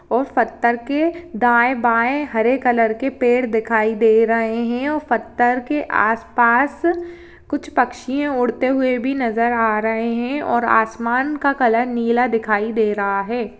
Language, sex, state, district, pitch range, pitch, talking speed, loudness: Hindi, female, Chhattisgarh, Kabirdham, 230-265 Hz, 240 Hz, 155 wpm, -18 LUFS